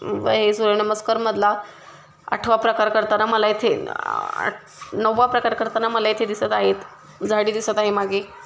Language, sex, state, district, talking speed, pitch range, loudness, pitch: Marathi, female, Maharashtra, Pune, 150 wpm, 210-225 Hz, -20 LUFS, 220 Hz